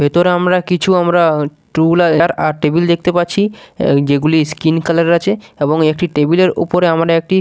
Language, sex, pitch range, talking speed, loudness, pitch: Bengali, male, 155-180 Hz, 160 wpm, -13 LUFS, 170 Hz